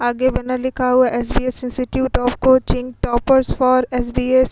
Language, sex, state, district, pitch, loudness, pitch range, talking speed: Hindi, female, Uttar Pradesh, Muzaffarnagar, 255 Hz, -18 LUFS, 250-260 Hz, 160 wpm